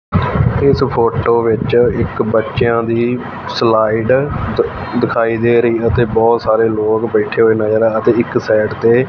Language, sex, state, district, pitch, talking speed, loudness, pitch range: Punjabi, male, Punjab, Fazilka, 115 Hz, 140 wpm, -14 LUFS, 110-120 Hz